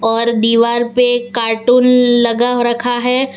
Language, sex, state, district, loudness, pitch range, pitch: Hindi, female, Gujarat, Valsad, -13 LUFS, 235-245 Hz, 240 Hz